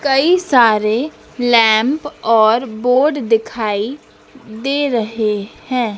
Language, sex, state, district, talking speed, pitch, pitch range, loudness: Hindi, female, Madhya Pradesh, Dhar, 90 wpm, 235 Hz, 220-270 Hz, -15 LUFS